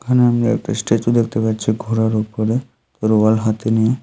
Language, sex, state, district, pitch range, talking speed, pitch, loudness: Bengali, male, Tripura, Unakoti, 110-120 Hz, 165 wpm, 110 Hz, -17 LUFS